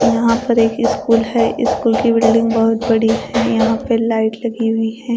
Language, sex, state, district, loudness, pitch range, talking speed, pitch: Hindi, female, Odisha, Khordha, -15 LUFS, 225-235 Hz, 195 wpm, 230 Hz